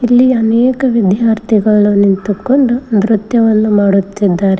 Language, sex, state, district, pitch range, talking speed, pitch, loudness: Kannada, female, Karnataka, Koppal, 200-240 Hz, 80 wpm, 215 Hz, -11 LUFS